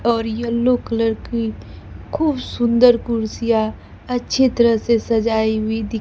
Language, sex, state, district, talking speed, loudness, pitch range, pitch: Hindi, female, Bihar, Kaimur, 130 wpm, -18 LUFS, 225-240 Hz, 230 Hz